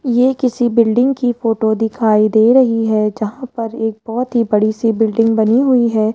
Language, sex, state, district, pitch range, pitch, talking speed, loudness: Hindi, male, Rajasthan, Jaipur, 220-245 Hz, 225 Hz, 195 wpm, -14 LUFS